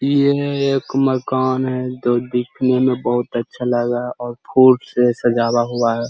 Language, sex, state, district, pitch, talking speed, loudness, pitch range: Hindi, male, Bihar, Jahanabad, 125 Hz, 165 wpm, -18 LUFS, 120-130 Hz